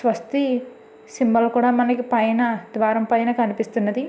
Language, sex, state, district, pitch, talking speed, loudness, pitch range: Telugu, female, Andhra Pradesh, Srikakulam, 235 Hz, 115 wpm, -20 LUFS, 225-245 Hz